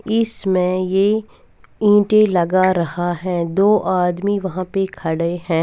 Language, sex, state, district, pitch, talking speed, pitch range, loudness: Hindi, female, Punjab, Fazilka, 185 Hz, 130 wpm, 175-205 Hz, -18 LUFS